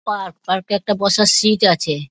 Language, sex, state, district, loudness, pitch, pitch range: Bengali, female, West Bengal, Dakshin Dinajpur, -16 LUFS, 200 Hz, 180-210 Hz